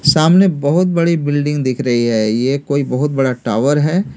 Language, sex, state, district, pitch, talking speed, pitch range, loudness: Hindi, male, Delhi, New Delhi, 145 Hz, 185 wpm, 130-155 Hz, -15 LUFS